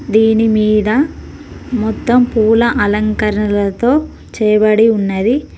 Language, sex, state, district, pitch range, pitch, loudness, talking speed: Telugu, female, Telangana, Mahabubabad, 215-235 Hz, 220 Hz, -13 LUFS, 75 wpm